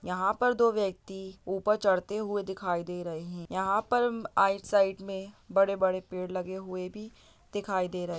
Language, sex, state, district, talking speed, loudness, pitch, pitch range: Hindi, female, Bihar, Lakhisarai, 175 wpm, -30 LUFS, 195 Hz, 185-205 Hz